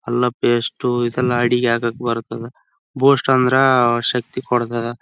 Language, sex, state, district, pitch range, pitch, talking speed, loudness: Kannada, male, Karnataka, Raichur, 120-125 Hz, 120 Hz, 145 wpm, -18 LUFS